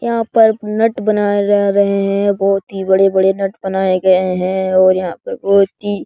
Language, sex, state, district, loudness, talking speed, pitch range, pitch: Hindi, male, Bihar, Jahanabad, -14 LUFS, 210 wpm, 190-205 Hz, 195 Hz